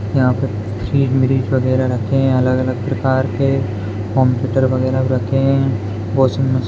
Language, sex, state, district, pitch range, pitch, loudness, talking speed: Hindi, male, Maharashtra, Dhule, 120-130 Hz, 130 Hz, -17 LUFS, 155 wpm